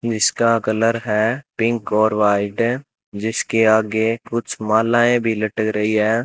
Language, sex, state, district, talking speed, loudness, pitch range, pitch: Hindi, male, Rajasthan, Bikaner, 135 wpm, -18 LUFS, 110-115 Hz, 110 Hz